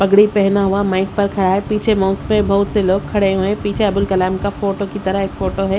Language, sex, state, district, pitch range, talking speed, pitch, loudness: Hindi, female, Odisha, Sambalpur, 195-205 Hz, 260 wpm, 200 Hz, -16 LUFS